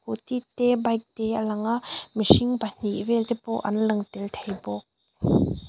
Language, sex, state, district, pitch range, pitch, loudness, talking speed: Mizo, female, Mizoram, Aizawl, 205-235 Hz, 220 Hz, -25 LUFS, 180 wpm